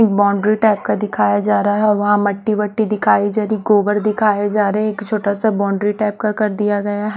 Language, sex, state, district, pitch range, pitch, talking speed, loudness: Hindi, female, Haryana, Charkhi Dadri, 205-215 Hz, 210 Hz, 250 wpm, -16 LUFS